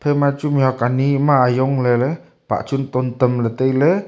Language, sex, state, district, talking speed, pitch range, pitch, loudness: Wancho, male, Arunachal Pradesh, Longding, 205 wpm, 125-140 Hz, 130 Hz, -18 LUFS